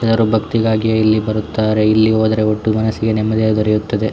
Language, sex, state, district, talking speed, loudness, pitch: Kannada, male, Karnataka, Shimoga, 145 wpm, -15 LUFS, 110 Hz